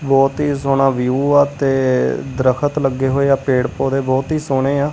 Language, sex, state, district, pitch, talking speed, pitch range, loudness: Punjabi, male, Punjab, Kapurthala, 135 Hz, 195 wpm, 130-140 Hz, -16 LUFS